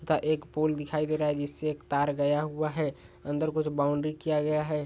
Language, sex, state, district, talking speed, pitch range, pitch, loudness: Hindi, male, Rajasthan, Churu, 235 wpm, 145-155 Hz, 150 Hz, -29 LUFS